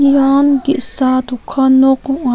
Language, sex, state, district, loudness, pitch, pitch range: Garo, female, Meghalaya, North Garo Hills, -12 LUFS, 270 Hz, 260-280 Hz